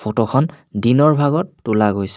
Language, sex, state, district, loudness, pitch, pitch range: Assamese, male, Assam, Kamrup Metropolitan, -17 LUFS, 120 Hz, 105-150 Hz